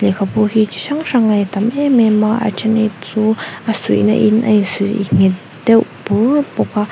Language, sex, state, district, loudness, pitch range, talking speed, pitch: Mizo, female, Mizoram, Aizawl, -14 LUFS, 200-225 Hz, 225 wpm, 215 Hz